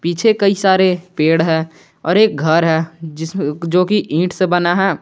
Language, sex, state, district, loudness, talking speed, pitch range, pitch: Hindi, male, Jharkhand, Garhwa, -15 LUFS, 190 wpm, 160-190 Hz, 175 Hz